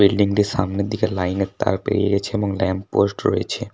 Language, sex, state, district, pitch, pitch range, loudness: Bengali, male, West Bengal, Paschim Medinipur, 100 Hz, 95-105 Hz, -21 LUFS